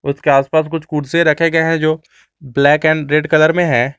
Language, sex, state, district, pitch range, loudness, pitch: Hindi, male, Jharkhand, Garhwa, 140-160 Hz, -14 LUFS, 155 Hz